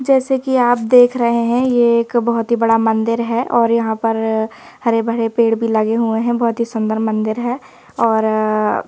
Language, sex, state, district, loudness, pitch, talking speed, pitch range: Hindi, female, Madhya Pradesh, Bhopal, -16 LUFS, 230 Hz, 195 wpm, 225-240 Hz